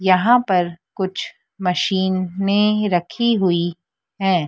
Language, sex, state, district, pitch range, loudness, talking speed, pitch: Hindi, female, Madhya Pradesh, Dhar, 180-200 Hz, -19 LUFS, 95 wpm, 190 Hz